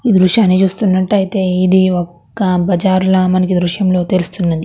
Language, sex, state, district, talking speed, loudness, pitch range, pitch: Telugu, female, Andhra Pradesh, Krishna, 170 wpm, -13 LUFS, 180-190 Hz, 185 Hz